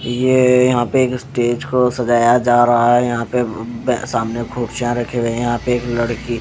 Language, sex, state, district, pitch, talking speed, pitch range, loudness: Hindi, male, Bihar, West Champaran, 120 Hz, 205 wpm, 120-125 Hz, -16 LUFS